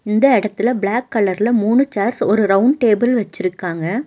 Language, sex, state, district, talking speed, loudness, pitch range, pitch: Tamil, female, Tamil Nadu, Nilgiris, 145 wpm, -16 LUFS, 200-245 Hz, 215 Hz